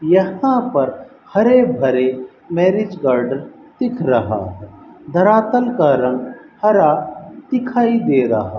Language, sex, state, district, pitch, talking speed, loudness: Hindi, male, Rajasthan, Bikaner, 185 Hz, 120 wpm, -16 LUFS